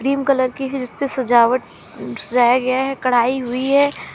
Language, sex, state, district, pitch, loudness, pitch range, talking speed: Hindi, female, Uttar Pradesh, Lalitpur, 255 Hz, -18 LUFS, 245-270 Hz, 175 wpm